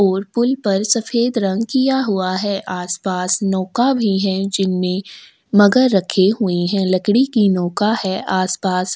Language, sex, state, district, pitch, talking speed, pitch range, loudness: Hindi, female, Chhattisgarh, Sukma, 195 Hz, 165 wpm, 185-220 Hz, -17 LUFS